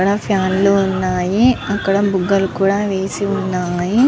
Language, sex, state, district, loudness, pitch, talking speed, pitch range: Telugu, male, Andhra Pradesh, Visakhapatnam, -16 LUFS, 195 Hz, 130 wpm, 185-200 Hz